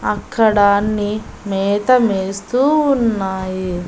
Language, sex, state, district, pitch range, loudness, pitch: Telugu, female, Andhra Pradesh, Annamaya, 195-230 Hz, -16 LUFS, 205 Hz